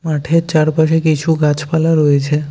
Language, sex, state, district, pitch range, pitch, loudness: Bengali, male, West Bengal, Cooch Behar, 150-160 Hz, 155 Hz, -14 LUFS